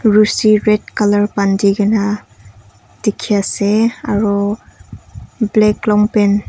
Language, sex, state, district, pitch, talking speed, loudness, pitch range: Nagamese, female, Nagaland, Kohima, 210 Hz, 110 wpm, -14 LUFS, 200-215 Hz